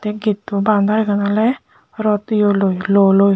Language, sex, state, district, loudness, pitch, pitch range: Chakma, male, Tripura, Unakoti, -16 LUFS, 205 Hz, 200-215 Hz